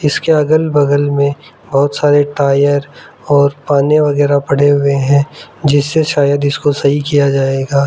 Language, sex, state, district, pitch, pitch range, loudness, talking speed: Hindi, male, Arunachal Pradesh, Lower Dibang Valley, 145 Hz, 140-145 Hz, -12 LUFS, 145 wpm